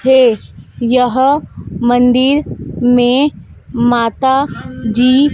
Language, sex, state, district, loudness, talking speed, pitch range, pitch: Hindi, female, Madhya Pradesh, Dhar, -13 LUFS, 65 wpm, 240-265 Hz, 250 Hz